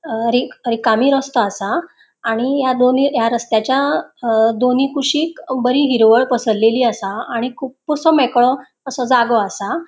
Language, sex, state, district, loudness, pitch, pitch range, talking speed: Konkani, female, Goa, North and South Goa, -16 LUFS, 250 Hz, 230-270 Hz, 140 wpm